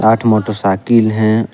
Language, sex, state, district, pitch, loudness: Hindi, male, Jharkhand, Deoghar, 110 Hz, -13 LUFS